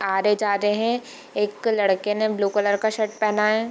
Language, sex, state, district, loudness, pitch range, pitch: Hindi, female, Bihar, Gopalganj, -22 LUFS, 205-220 Hz, 210 Hz